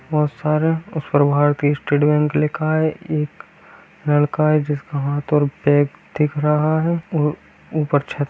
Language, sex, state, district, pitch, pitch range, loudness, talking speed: Hindi, male, Bihar, Kishanganj, 150 Hz, 145-155 Hz, -19 LUFS, 165 wpm